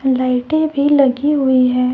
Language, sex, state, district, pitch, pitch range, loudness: Hindi, female, Jharkhand, Deoghar, 265 Hz, 255-290 Hz, -15 LUFS